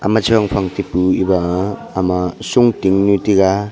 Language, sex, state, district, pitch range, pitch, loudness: Wancho, male, Arunachal Pradesh, Longding, 95-105 Hz, 100 Hz, -15 LUFS